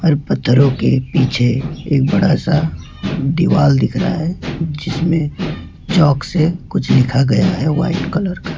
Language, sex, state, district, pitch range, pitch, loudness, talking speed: Hindi, male, West Bengal, Alipurduar, 130-165 Hz, 150 Hz, -16 LUFS, 145 wpm